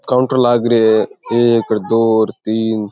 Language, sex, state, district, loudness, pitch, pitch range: Rajasthani, male, Rajasthan, Churu, -14 LUFS, 115 Hz, 110-120 Hz